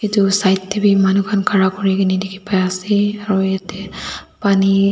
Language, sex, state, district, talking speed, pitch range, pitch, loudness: Nagamese, female, Nagaland, Dimapur, 160 wpm, 190-205 Hz, 195 Hz, -16 LUFS